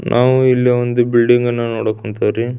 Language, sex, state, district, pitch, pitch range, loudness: Kannada, male, Karnataka, Belgaum, 120 Hz, 115-125 Hz, -15 LUFS